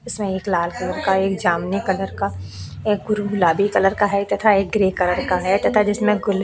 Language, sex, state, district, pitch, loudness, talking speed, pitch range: Hindi, female, Uttar Pradesh, Jalaun, 195 Hz, -19 LUFS, 225 wpm, 180-205 Hz